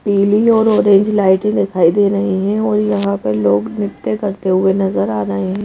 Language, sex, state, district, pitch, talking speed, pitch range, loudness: Hindi, female, Madhya Pradesh, Bhopal, 200 Hz, 200 wpm, 190-210 Hz, -14 LUFS